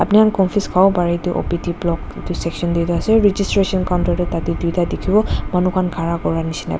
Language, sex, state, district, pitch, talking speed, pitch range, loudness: Nagamese, female, Nagaland, Dimapur, 175 Hz, 205 wpm, 170-195 Hz, -18 LUFS